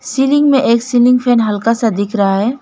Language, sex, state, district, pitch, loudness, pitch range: Hindi, female, West Bengal, Alipurduar, 235 Hz, -12 LUFS, 215-250 Hz